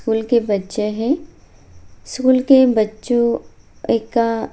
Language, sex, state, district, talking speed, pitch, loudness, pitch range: Hindi, female, Bihar, Bhagalpur, 120 wpm, 225 Hz, -17 LUFS, 205-245 Hz